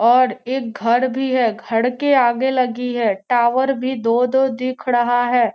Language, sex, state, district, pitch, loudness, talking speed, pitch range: Hindi, female, Bihar, Gopalganj, 245 Hz, -18 LUFS, 175 wpm, 235-260 Hz